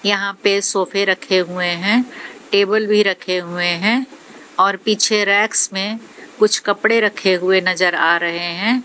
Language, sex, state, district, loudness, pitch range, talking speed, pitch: Hindi, female, Haryana, Jhajjar, -16 LUFS, 185-215 Hz, 155 wpm, 200 Hz